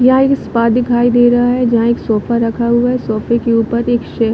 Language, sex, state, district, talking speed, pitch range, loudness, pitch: Hindi, female, Chhattisgarh, Bilaspur, 250 wpm, 230-245 Hz, -13 LUFS, 235 Hz